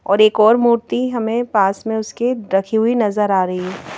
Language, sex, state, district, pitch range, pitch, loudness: Hindi, female, Madhya Pradesh, Bhopal, 195-235 Hz, 220 Hz, -17 LUFS